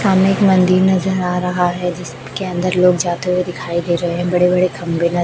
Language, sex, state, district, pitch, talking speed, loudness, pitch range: Hindi, male, Chhattisgarh, Raipur, 180 Hz, 230 wpm, -16 LUFS, 175-185 Hz